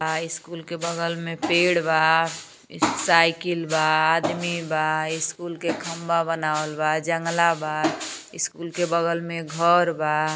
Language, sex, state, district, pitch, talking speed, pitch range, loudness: Bhojpuri, female, Uttar Pradesh, Gorakhpur, 165 Hz, 135 wpm, 160-170 Hz, -23 LUFS